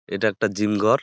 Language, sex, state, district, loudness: Bengali, male, West Bengal, Jalpaiguri, -22 LUFS